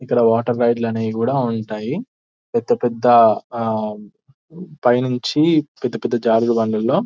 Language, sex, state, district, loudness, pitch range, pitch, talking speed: Telugu, male, Telangana, Nalgonda, -18 LUFS, 115-130 Hz, 120 Hz, 135 wpm